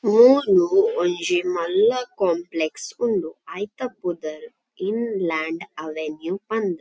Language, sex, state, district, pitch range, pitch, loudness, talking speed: Tulu, female, Karnataka, Dakshina Kannada, 165-255 Hz, 210 Hz, -22 LUFS, 95 wpm